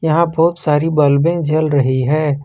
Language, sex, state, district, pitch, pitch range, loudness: Hindi, male, Jharkhand, Ranchi, 155 Hz, 145-165 Hz, -15 LUFS